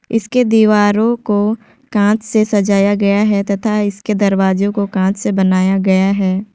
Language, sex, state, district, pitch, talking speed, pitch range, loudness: Hindi, female, Jharkhand, Ranchi, 205 Hz, 155 wpm, 195-215 Hz, -14 LUFS